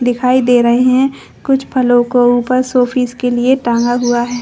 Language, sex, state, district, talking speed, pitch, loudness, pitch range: Hindi, female, Chhattisgarh, Bastar, 190 wpm, 245 Hz, -13 LUFS, 245-255 Hz